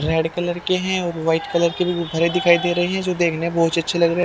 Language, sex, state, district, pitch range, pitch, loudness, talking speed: Hindi, male, Haryana, Jhajjar, 165-175 Hz, 170 Hz, -20 LUFS, 295 wpm